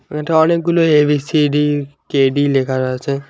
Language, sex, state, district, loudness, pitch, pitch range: Bengali, male, West Bengal, Alipurduar, -15 LUFS, 145 Hz, 140-155 Hz